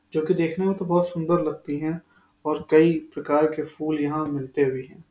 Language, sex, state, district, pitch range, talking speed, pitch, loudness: Hindi, male, Uttar Pradesh, Budaun, 150-170 Hz, 220 wpm, 155 Hz, -24 LUFS